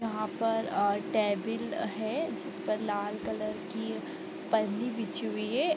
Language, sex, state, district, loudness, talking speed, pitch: Hindi, female, Bihar, Sitamarhi, -32 LUFS, 155 wpm, 205 Hz